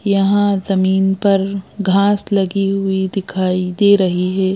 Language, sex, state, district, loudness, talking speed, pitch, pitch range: Hindi, female, Madhya Pradesh, Bhopal, -16 LUFS, 130 wpm, 195 Hz, 190-200 Hz